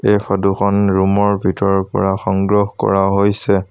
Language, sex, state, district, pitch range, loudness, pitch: Assamese, male, Assam, Sonitpur, 95-100 Hz, -15 LUFS, 100 Hz